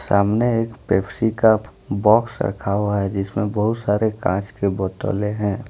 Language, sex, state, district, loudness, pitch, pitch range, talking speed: Hindi, male, Jharkhand, Ranchi, -20 LUFS, 105 Hz, 100-110 Hz, 160 wpm